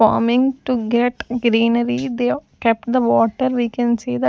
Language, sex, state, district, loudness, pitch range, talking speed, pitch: English, female, Punjab, Fazilka, -18 LUFS, 230-250 Hz, 180 wpm, 240 Hz